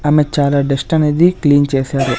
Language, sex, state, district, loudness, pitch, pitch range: Telugu, male, Andhra Pradesh, Sri Satya Sai, -14 LUFS, 145 Hz, 140-150 Hz